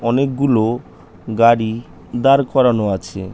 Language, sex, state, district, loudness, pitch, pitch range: Bengali, male, West Bengal, North 24 Parganas, -16 LUFS, 115 Hz, 110-130 Hz